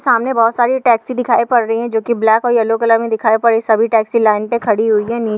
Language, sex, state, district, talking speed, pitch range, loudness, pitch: Hindi, female, Bihar, Madhepura, 300 wpm, 220-235 Hz, -14 LUFS, 230 Hz